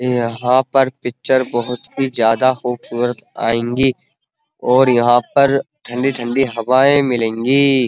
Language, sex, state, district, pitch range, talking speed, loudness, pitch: Hindi, male, Uttar Pradesh, Muzaffarnagar, 120-135 Hz, 105 wpm, -16 LUFS, 125 Hz